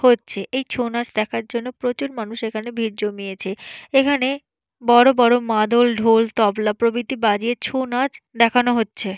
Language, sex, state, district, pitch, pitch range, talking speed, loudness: Bengali, female, West Bengal, Purulia, 235 Hz, 220-245 Hz, 135 wpm, -19 LUFS